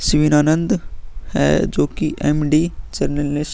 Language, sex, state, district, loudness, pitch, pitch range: Hindi, female, Bihar, Vaishali, -18 LUFS, 150 Hz, 145-155 Hz